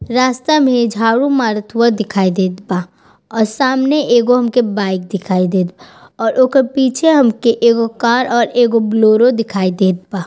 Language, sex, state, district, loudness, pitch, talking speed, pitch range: Bhojpuri, female, Bihar, East Champaran, -14 LUFS, 230 Hz, 165 wpm, 200-250 Hz